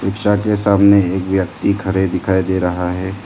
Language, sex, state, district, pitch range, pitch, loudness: Hindi, male, Arunachal Pradesh, Lower Dibang Valley, 95-100 Hz, 95 Hz, -16 LUFS